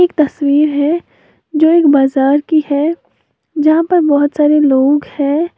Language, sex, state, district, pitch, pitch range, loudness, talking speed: Hindi, female, Uttar Pradesh, Lalitpur, 300 Hz, 285-320 Hz, -12 LUFS, 150 wpm